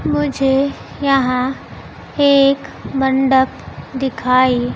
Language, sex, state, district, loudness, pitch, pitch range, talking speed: Hindi, female, Bihar, Kaimur, -16 LUFS, 270 Hz, 255-275 Hz, 65 wpm